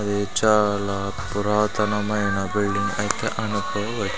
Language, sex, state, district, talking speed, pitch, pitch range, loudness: Telugu, male, Andhra Pradesh, Sri Satya Sai, 85 wpm, 100 Hz, 100-105 Hz, -23 LUFS